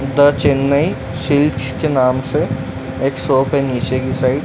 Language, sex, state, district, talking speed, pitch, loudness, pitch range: Hindi, male, Madhya Pradesh, Dhar, 175 wpm, 135 Hz, -16 LUFS, 130-145 Hz